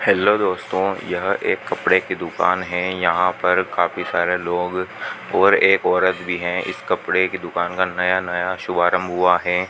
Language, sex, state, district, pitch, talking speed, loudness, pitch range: Hindi, male, Rajasthan, Bikaner, 90 Hz, 175 wpm, -19 LUFS, 90-95 Hz